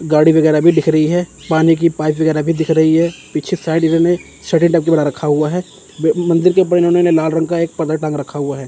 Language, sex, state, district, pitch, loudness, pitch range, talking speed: Hindi, male, Chandigarh, Chandigarh, 160 Hz, -14 LUFS, 155-170 Hz, 220 wpm